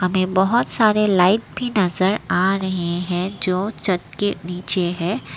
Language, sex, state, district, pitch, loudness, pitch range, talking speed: Hindi, female, Assam, Kamrup Metropolitan, 185 Hz, -19 LUFS, 180-205 Hz, 155 wpm